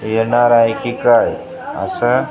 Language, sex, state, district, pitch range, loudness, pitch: Marathi, male, Maharashtra, Gondia, 115-120 Hz, -15 LUFS, 120 Hz